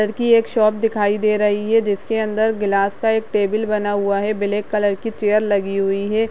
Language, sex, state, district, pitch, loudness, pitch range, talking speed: Hindi, female, Uttarakhand, Tehri Garhwal, 210 Hz, -18 LUFS, 205-220 Hz, 210 wpm